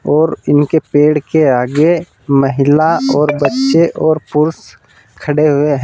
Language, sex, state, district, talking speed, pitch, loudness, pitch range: Hindi, male, Uttar Pradesh, Saharanpur, 135 wpm, 150 Hz, -12 LUFS, 140-155 Hz